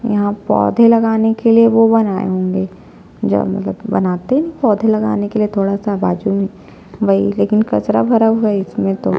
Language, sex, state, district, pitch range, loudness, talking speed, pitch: Hindi, female, Chhattisgarh, Jashpur, 190-225 Hz, -15 LUFS, 190 wpm, 205 Hz